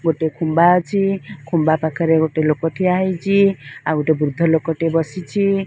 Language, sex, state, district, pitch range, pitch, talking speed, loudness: Odia, female, Odisha, Sambalpur, 160-185 Hz, 165 Hz, 150 wpm, -18 LUFS